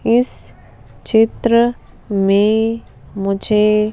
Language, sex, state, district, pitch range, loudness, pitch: Hindi, female, Madhya Pradesh, Bhopal, 195-230 Hz, -16 LUFS, 210 Hz